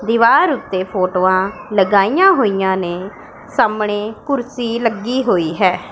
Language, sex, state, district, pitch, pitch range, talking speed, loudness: Punjabi, female, Punjab, Pathankot, 210 Hz, 185-235 Hz, 110 wpm, -16 LUFS